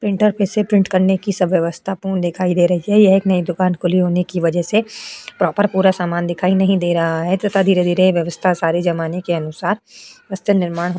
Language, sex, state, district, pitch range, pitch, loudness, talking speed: Hindi, female, Uttar Pradesh, Etah, 175-195 Hz, 185 Hz, -17 LUFS, 220 wpm